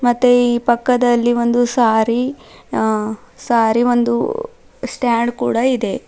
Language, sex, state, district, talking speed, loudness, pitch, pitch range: Kannada, female, Karnataka, Bidar, 110 wpm, -16 LUFS, 240 Hz, 235-245 Hz